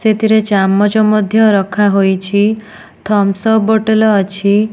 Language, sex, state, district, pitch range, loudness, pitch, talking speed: Odia, female, Odisha, Nuapada, 200-220 Hz, -12 LUFS, 210 Hz, 100 wpm